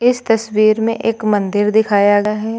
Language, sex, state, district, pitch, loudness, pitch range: Hindi, female, Uttar Pradesh, Lucknow, 215 Hz, -15 LUFS, 205-225 Hz